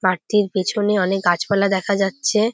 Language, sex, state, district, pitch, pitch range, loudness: Bengali, female, West Bengal, Jhargram, 200 Hz, 185-210 Hz, -19 LUFS